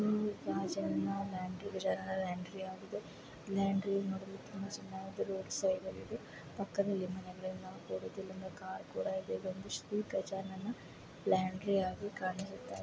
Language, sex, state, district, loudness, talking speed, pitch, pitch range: Kannada, female, Karnataka, Chamarajanagar, -39 LUFS, 75 wpm, 190 Hz, 185-195 Hz